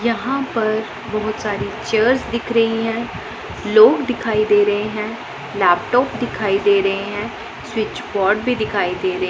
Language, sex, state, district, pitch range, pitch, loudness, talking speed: Hindi, female, Punjab, Pathankot, 205-235 Hz, 220 Hz, -18 LUFS, 155 wpm